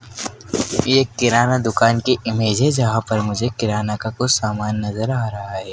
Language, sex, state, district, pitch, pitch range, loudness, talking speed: Hindi, male, Madhya Pradesh, Dhar, 115 Hz, 105-125 Hz, -19 LUFS, 180 wpm